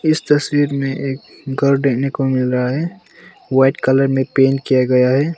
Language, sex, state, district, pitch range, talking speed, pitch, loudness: Hindi, male, Arunachal Pradesh, Longding, 130-145 Hz, 190 wpm, 135 Hz, -16 LUFS